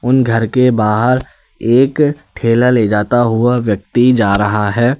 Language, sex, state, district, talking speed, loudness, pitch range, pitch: Hindi, male, Uttar Pradesh, Lalitpur, 155 wpm, -13 LUFS, 105-125 Hz, 120 Hz